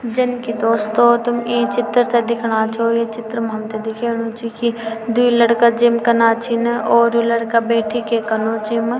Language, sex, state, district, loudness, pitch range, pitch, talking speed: Garhwali, female, Uttarakhand, Tehri Garhwal, -17 LUFS, 225-235 Hz, 230 Hz, 180 wpm